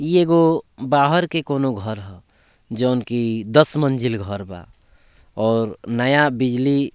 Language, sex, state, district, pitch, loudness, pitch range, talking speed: Bhojpuri, male, Bihar, Muzaffarpur, 125 Hz, -19 LUFS, 110-145 Hz, 140 wpm